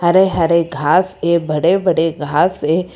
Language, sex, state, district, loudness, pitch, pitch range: Hindi, female, Karnataka, Bangalore, -15 LUFS, 170 Hz, 160-180 Hz